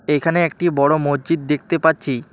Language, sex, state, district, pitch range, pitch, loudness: Bengali, male, West Bengal, Alipurduar, 145-165 Hz, 155 Hz, -18 LUFS